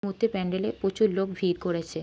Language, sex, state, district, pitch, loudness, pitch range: Bengali, female, West Bengal, Jhargram, 190 Hz, -27 LUFS, 180-200 Hz